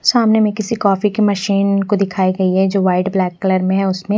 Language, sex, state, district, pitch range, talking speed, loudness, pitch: Hindi, male, Odisha, Nuapada, 190-210 Hz, 245 wpm, -15 LUFS, 195 Hz